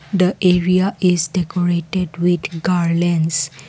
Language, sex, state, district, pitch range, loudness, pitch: English, female, Assam, Kamrup Metropolitan, 165-180 Hz, -17 LUFS, 175 Hz